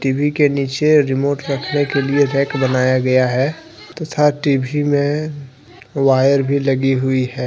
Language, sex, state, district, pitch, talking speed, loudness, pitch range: Hindi, male, Jharkhand, Deoghar, 140 Hz, 160 wpm, -16 LUFS, 130-145 Hz